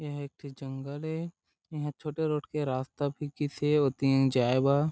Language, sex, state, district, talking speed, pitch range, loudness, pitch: Chhattisgarhi, male, Chhattisgarh, Sarguja, 195 wpm, 135-150 Hz, -30 LUFS, 145 Hz